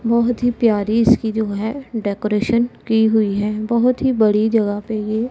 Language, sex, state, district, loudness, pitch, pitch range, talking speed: Hindi, female, Punjab, Pathankot, -18 LUFS, 220 Hz, 215-235 Hz, 180 wpm